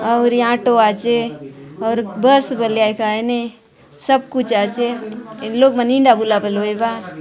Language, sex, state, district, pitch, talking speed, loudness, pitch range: Halbi, female, Chhattisgarh, Bastar, 230 Hz, 165 wpm, -16 LUFS, 215-240 Hz